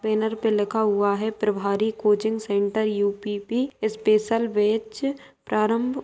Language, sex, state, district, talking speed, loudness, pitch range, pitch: Hindi, female, Uttar Pradesh, Ghazipur, 130 wpm, -24 LUFS, 210-220 Hz, 215 Hz